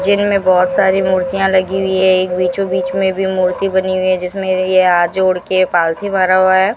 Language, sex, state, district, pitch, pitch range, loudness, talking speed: Hindi, female, Rajasthan, Bikaner, 185 Hz, 185-190 Hz, -14 LUFS, 230 wpm